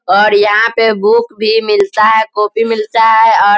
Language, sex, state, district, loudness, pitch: Hindi, female, Bihar, Sitamarhi, -10 LUFS, 225 Hz